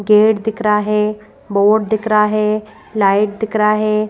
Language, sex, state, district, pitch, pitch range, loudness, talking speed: Hindi, female, Madhya Pradesh, Bhopal, 210 Hz, 210-215 Hz, -15 LUFS, 175 wpm